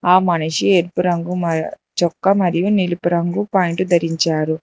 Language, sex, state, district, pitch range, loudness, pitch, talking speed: Telugu, female, Telangana, Hyderabad, 165-185 Hz, -18 LUFS, 175 Hz, 140 wpm